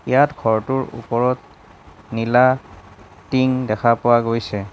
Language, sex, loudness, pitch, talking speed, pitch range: Assamese, male, -19 LUFS, 115 Hz, 100 wpm, 110-130 Hz